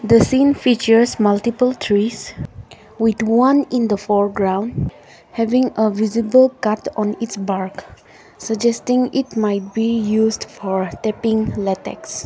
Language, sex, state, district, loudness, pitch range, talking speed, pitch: English, female, Nagaland, Kohima, -18 LUFS, 205-240 Hz, 120 wpm, 225 Hz